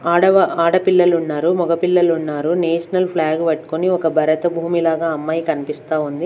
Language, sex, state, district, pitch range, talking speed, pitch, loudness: Telugu, female, Andhra Pradesh, Manyam, 160-175 Hz, 125 wpm, 165 Hz, -17 LUFS